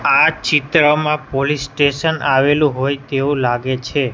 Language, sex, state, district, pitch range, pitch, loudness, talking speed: Gujarati, male, Gujarat, Gandhinagar, 135-150 Hz, 140 Hz, -16 LUFS, 130 wpm